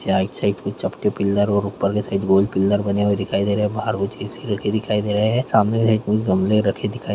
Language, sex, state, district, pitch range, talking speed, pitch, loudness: Hindi, male, Bihar, Muzaffarpur, 100-105 Hz, 295 wpm, 105 Hz, -20 LUFS